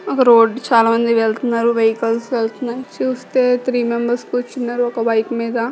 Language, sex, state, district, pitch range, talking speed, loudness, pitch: Telugu, female, Andhra Pradesh, Visakhapatnam, 230-245 Hz, 135 wpm, -17 LUFS, 235 Hz